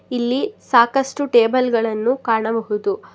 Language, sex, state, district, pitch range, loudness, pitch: Kannada, female, Karnataka, Bangalore, 225-260 Hz, -18 LUFS, 240 Hz